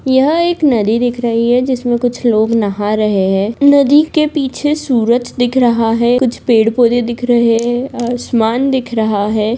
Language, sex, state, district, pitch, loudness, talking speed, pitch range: Hindi, female, Bihar, Lakhisarai, 240 Hz, -13 LUFS, 175 wpm, 225-260 Hz